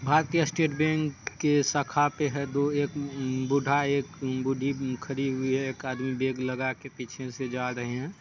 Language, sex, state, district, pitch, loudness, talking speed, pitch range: Hindi, male, Bihar, Saharsa, 135 Hz, -28 LUFS, 205 wpm, 130-145 Hz